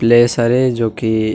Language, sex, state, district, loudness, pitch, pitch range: Chhattisgarhi, male, Chhattisgarh, Sarguja, -15 LUFS, 120 Hz, 110-120 Hz